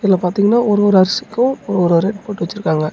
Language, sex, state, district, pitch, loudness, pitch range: Tamil, male, Tamil Nadu, Namakkal, 200 Hz, -15 LUFS, 180-215 Hz